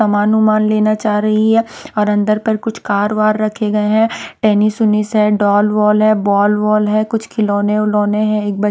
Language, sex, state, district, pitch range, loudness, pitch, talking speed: Hindi, female, Punjab, Pathankot, 210-215 Hz, -14 LUFS, 215 Hz, 200 wpm